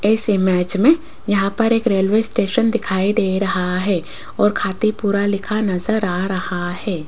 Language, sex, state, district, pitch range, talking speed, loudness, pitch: Hindi, female, Rajasthan, Jaipur, 190-215 Hz, 160 wpm, -18 LUFS, 200 Hz